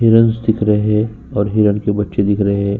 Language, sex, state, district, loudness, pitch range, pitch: Hindi, male, Uttar Pradesh, Jyotiba Phule Nagar, -15 LUFS, 100-110 Hz, 105 Hz